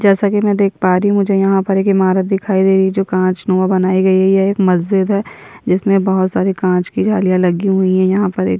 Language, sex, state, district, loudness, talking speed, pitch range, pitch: Hindi, female, Bihar, Kishanganj, -14 LUFS, 270 wpm, 185-195 Hz, 190 Hz